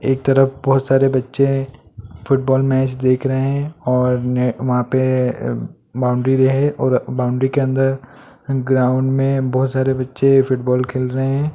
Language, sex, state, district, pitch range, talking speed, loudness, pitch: Hindi, male, West Bengal, Purulia, 125-135 Hz, 150 wpm, -17 LUFS, 130 Hz